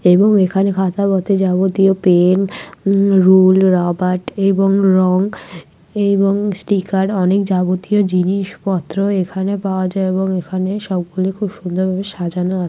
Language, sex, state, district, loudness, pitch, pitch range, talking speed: Bengali, female, West Bengal, Malda, -15 LUFS, 190 Hz, 185-195 Hz, 125 wpm